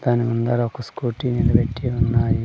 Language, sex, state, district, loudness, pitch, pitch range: Telugu, male, Andhra Pradesh, Sri Satya Sai, -21 LUFS, 120 Hz, 115-120 Hz